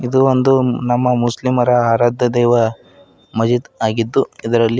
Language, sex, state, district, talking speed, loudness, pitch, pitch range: Kannada, male, Karnataka, Bidar, 110 wpm, -16 LUFS, 120 Hz, 115-125 Hz